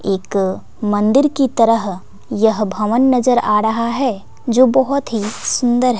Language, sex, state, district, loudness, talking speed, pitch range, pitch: Hindi, female, Bihar, West Champaran, -16 LUFS, 140 wpm, 210-255 Hz, 230 Hz